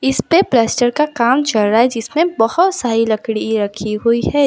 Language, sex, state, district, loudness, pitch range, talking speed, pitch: Hindi, female, Gujarat, Valsad, -15 LUFS, 225-280 Hz, 200 wpm, 235 Hz